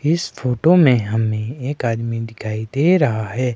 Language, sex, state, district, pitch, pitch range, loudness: Hindi, male, Himachal Pradesh, Shimla, 120 Hz, 110-145 Hz, -18 LUFS